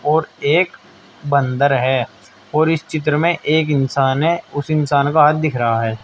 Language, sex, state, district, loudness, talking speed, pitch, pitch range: Hindi, male, Uttar Pradesh, Saharanpur, -17 LUFS, 180 wpm, 145 Hz, 135-155 Hz